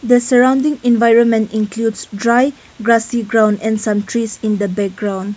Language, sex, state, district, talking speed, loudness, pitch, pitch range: English, female, Nagaland, Kohima, 145 wpm, -15 LUFS, 225 Hz, 210-240 Hz